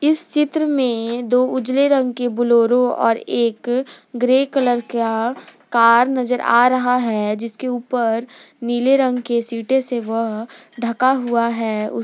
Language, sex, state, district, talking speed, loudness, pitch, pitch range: Hindi, female, Jharkhand, Garhwa, 150 wpm, -18 LUFS, 245 Hz, 230-255 Hz